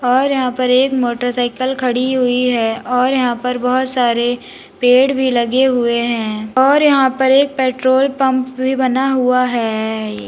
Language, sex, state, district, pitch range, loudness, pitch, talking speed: Hindi, female, Uttar Pradesh, Lalitpur, 245-260 Hz, -15 LUFS, 255 Hz, 165 wpm